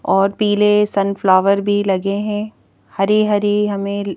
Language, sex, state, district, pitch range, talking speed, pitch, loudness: Hindi, female, Madhya Pradesh, Bhopal, 195-210 Hz, 145 wpm, 200 Hz, -16 LUFS